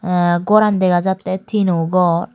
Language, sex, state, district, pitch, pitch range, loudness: Chakma, female, Tripura, Dhalai, 185 Hz, 175-195 Hz, -16 LUFS